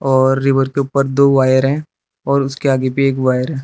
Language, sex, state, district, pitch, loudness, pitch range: Hindi, male, Arunachal Pradesh, Lower Dibang Valley, 135 Hz, -15 LUFS, 130-140 Hz